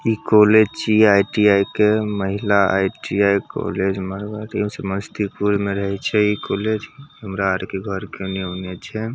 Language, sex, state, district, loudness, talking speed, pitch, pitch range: Maithili, male, Bihar, Samastipur, -19 LUFS, 155 wpm, 100 Hz, 95-105 Hz